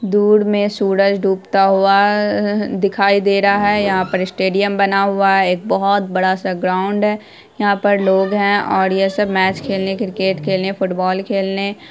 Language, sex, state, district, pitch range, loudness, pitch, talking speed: Hindi, female, Bihar, Saharsa, 190-205 Hz, -16 LUFS, 195 Hz, 190 wpm